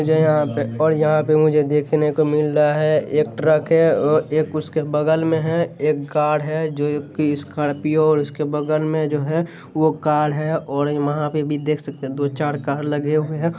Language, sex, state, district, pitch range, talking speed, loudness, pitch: Hindi, male, Bihar, Saharsa, 150-155 Hz, 215 wpm, -19 LUFS, 150 Hz